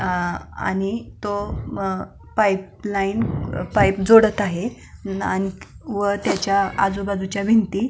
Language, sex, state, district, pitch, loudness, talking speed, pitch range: Marathi, female, Maharashtra, Pune, 195 Hz, -21 LUFS, 100 wpm, 190-205 Hz